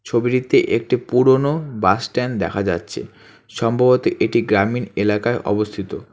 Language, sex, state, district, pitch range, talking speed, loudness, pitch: Bengali, male, West Bengal, Alipurduar, 105-125 Hz, 120 wpm, -18 LUFS, 115 Hz